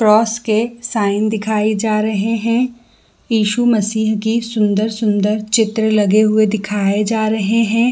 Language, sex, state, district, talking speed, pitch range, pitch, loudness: Hindi, female, Chhattisgarh, Bilaspur, 135 wpm, 210-225 Hz, 215 Hz, -16 LUFS